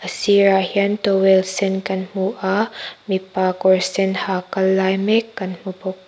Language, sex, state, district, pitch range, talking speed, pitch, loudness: Mizo, female, Mizoram, Aizawl, 190-200 Hz, 190 wpm, 190 Hz, -19 LUFS